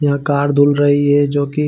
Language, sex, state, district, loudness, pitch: Hindi, male, Chhattisgarh, Bilaspur, -14 LUFS, 145 Hz